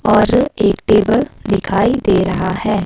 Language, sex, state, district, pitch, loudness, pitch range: Hindi, female, Himachal Pradesh, Shimla, 210 Hz, -15 LUFS, 195-220 Hz